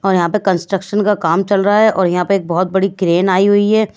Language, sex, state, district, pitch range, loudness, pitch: Hindi, female, Bihar, West Champaran, 185-205 Hz, -14 LUFS, 195 Hz